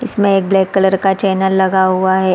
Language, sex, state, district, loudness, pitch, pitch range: Hindi, female, Chhattisgarh, Sarguja, -13 LUFS, 190 Hz, 190-195 Hz